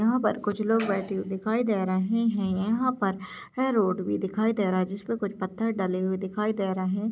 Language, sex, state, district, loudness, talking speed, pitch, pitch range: Hindi, female, Goa, North and South Goa, -27 LUFS, 235 wpm, 200 Hz, 190-220 Hz